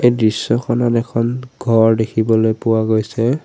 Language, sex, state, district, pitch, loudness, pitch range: Assamese, male, Assam, Sonitpur, 115 Hz, -16 LUFS, 110-120 Hz